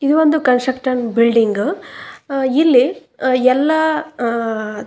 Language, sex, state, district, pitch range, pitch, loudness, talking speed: Kannada, female, Karnataka, Raichur, 235-300 Hz, 255 Hz, -16 LUFS, 125 wpm